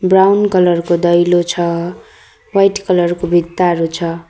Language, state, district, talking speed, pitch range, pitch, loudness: Nepali, West Bengal, Darjeeling, 140 wpm, 170-185 Hz, 175 Hz, -14 LUFS